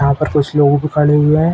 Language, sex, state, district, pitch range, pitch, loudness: Hindi, male, Uttar Pradesh, Ghazipur, 145-150 Hz, 150 Hz, -13 LUFS